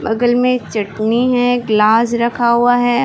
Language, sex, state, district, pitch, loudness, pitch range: Hindi, female, Uttar Pradesh, Varanasi, 240 Hz, -14 LUFS, 225-245 Hz